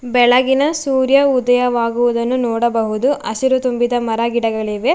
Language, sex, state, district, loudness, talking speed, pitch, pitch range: Kannada, female, Karnataka, Bangalore, -16 LUFS, 110 wpm, 245 Hz, 235-260 Hz